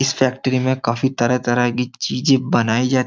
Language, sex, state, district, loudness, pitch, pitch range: Hindi, male, Uttar Pradesh, Jyotiba Phule Nagar, -18 LUFS, 130 Hz, 120-130 Hz